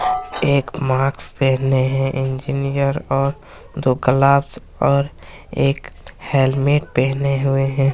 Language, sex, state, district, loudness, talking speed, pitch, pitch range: Hindi, male, Chhattisgarh, Kabirdham, -18 LUFS, 105 wpm, 135 Hz, 135-140 Hz